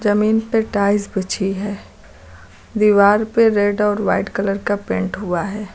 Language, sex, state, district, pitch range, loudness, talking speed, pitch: Hindi, female, Uttar Pradesh, Lucknow, 195-210 Hz, -18 LUFS, 155 wpm, 205 Hz